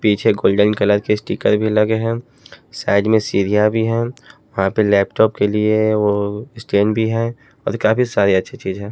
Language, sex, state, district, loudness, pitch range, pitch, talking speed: Hindi, male, Haryana, Jhajjar, -17 LUFS, 100-115 Hz, 105 Hz, 190 wpm